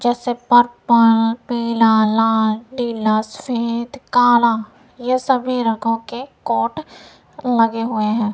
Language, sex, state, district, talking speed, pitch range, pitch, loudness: Hindi, female, Punjab, Kapurthala, 110 wpm, 225-245 Hz, 235 Hz, -17 LUFS